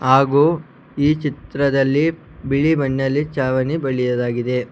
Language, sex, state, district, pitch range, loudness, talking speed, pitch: Kannada, male, Karnataka, Bangalore, 130-150 Hz, -19 LUFS, 90 wpm, 140 Hz